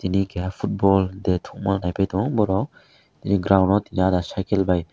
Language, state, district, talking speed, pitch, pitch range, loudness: Kokborok, Tripura, West Tripura, 170 wpm, 95 Hz, 95-100 Hz, -22 LUFS